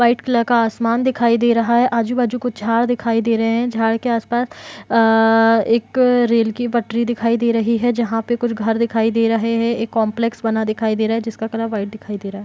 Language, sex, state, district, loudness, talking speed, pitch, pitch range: Hindi, female, Bihar, Kishanganj, -17 LUFS, 235 wpm, 230 Hz, 225-235 Hz